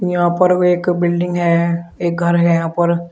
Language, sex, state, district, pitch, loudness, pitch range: Hindi, male, Uttar Pradesh, Shamli, 170 Hz, -16 LUFS, 170-175 Hz